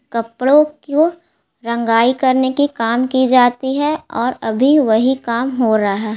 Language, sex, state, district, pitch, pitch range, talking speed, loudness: Hindi, female, Bihar, Gaya, 255 Hz, 230-285 Hz, 155 wpm, -15 LUFS